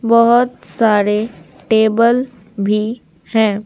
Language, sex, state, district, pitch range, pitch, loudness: Hindi, female, Bihar, Patna, 210-230 Hz, 220 Hz, -15 LUFS